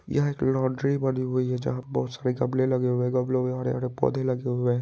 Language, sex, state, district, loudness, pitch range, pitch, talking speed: Hindi, male, Bihar, Saharsa, -26 LUFS, 125-130 Hz, 125 Hz, 250 wpm